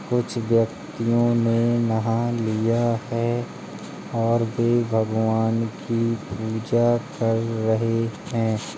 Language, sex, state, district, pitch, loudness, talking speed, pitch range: Hindi, male, Uttar Pradesh, Jalaun, 115 Hz, -23 LUFS, 95 wpm, 110-120 Hz